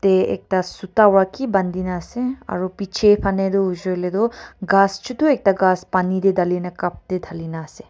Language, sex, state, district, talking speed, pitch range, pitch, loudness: Nagamese, female, Nagaland, Kohima, 165 wpm, 180-205 Hz, 190 Hz, -19 LUFS